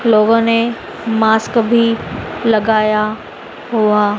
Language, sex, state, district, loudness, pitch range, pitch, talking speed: Hindi, female, Madhya Pradesh, Dhar, -15 LUFS, 215-230 Hz, 220 Hz, 85 wpm